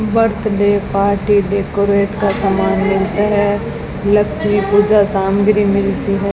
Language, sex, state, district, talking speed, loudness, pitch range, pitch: Hindi, female, Rajasthan, Bikaner, 115 wpm, -15 LUFS, 200-205 Hz, 200 Hz